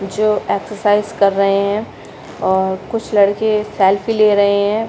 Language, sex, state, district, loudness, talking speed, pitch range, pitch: Hindi, female, Uttar Pradesh, Budaun, -15 LUFS, 145 wpm, 200-215 Hz, 205 Hz